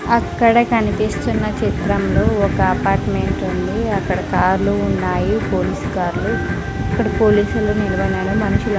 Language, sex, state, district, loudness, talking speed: Telugu, female, Andhra Pradesh, Sri Satya Sai, -18 LUFS, 110 wpm